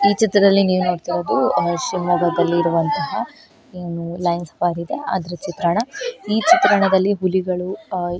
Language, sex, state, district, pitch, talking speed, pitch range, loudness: Kannada, female, Karnataka, Shimoga, 180 Hz, 110 wpm, 175-195 Hz, -19 LUFS